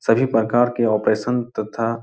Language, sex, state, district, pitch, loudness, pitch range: Hindi, male, Bihar, Jahanabad, 115 Hz, -20 LUFS, 110-120 Hz